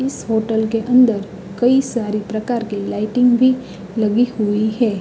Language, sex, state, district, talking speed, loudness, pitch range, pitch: Hindi, female, Uttar Pradesh, Hamirpur, 155 wpm, -17 LUFS, 210-245 Hz, 225 Hz